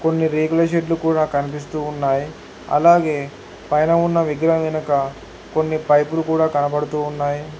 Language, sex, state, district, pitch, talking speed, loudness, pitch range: Telugu, male, Telangana, Hyderabad, 155 Hz, 125 wpm, -19 LUFS, 145-160 Hz